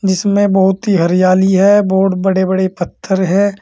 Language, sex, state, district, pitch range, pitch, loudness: Hindi, male, Uttar Pradesh, Saharanpur, 185-200 Hz, 190 Hz, -12 LUFS